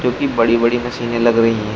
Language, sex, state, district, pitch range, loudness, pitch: Hindi, male, Uttar Pradesh, Shamli, 115-120 Hz, -16 LUFS, 120 Hz